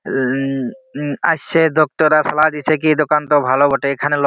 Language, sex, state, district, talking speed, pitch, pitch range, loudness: Bengali, male, West Bengal, Malda, 180 wpm, 150 Hz, 140-155 Hz, -16 LUFS